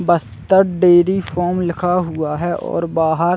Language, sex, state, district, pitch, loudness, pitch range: Hindi, male, Chhattisgarh, Bilaspur, 175 Hz, -17 LUFS, 165-180 Hz